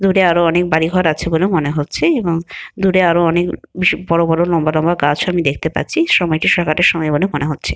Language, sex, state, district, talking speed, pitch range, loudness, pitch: Bengali, female, West Bengal, Jhargram, 225 wpm, 160-180 Hz, -15 LUFS, 170 Hz